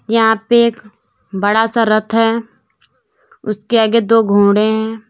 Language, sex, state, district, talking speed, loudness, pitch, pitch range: Hindi, female, Uttar Pradesh, Lalitpur, 140 wpm, -14 LUFS, 225 Hz, 215-230 Hz